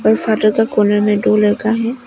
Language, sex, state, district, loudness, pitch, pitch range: Hindi, female, Arunachal Pradesh, Papum Pare, -14 LUFS, 215 Hz, 210-225 Hz